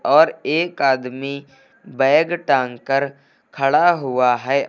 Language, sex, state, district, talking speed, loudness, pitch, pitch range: Hindi, male, Uttar Pradesh, Lucknow, 115 wpm, -18 LUFS, 135 Hz, 130-140 Hz